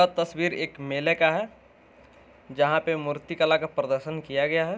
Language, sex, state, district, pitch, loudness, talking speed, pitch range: Hindi, male, Bihar, Saran, 160 Hz, -26 LUFS, 190 wpm, 145-165 Hz